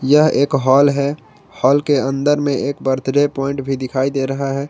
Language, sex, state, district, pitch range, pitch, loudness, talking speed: Hindi, male, Jharkhand, Garhwa, 135-145 Hz, 140 Hz, -17 LUFS, 205 wpm